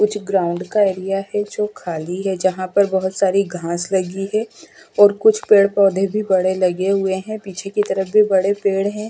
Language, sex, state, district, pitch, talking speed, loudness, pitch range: Hindi, female, Bihar, West Champaran, 195 Hz, 205 wpm, -18 LUFS, 190-205 Hz